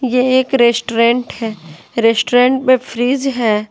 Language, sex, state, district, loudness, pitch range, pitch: Hindi, female, Bihar, West Champaran, -14 LUFS, 230-255 Hz, 240 Hz